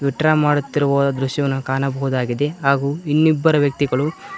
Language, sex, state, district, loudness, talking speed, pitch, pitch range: Kannada, male, Karnataka, Koppal, -18 LUFS, 95 wpm, 140 Hz, 135-150 Hz